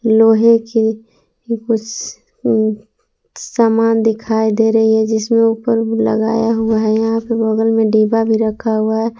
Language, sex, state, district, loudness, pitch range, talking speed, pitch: Hindi, female, Jharkhand, Palamu, -15 LUFS, 220-225 Hz, 145 wpm, 225 Hz